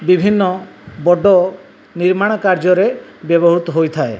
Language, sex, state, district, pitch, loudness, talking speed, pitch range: Odia, male, Odisha, Malkangiri, 180 Hz, -14 LUFS, 85 wpm, 170-190 Hz